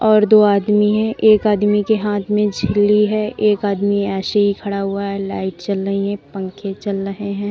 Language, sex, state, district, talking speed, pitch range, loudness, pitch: Hindi, female, Uttar Pradesh, Lalitpur, 205 wpm, 195-210 Hz, -17 LUFS, 205 Hz